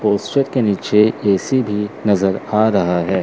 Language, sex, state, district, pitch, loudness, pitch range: Hindi, male, Chandigarh, Chandigarh, 105 Hz, -17 LUFS, 100-110 Hz